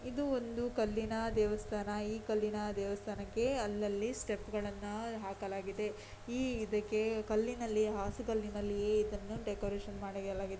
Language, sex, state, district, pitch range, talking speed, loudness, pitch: Kannada, female, Karnataka, Dakshina Kannada, 205-225 Hz, 95 wpm, -37 LUFS, 210 Hz